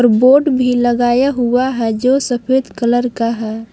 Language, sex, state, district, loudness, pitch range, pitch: Hindi, female, Jharkhand, Palamu, -14 LUFS, 235-255 Hz, 245 Hz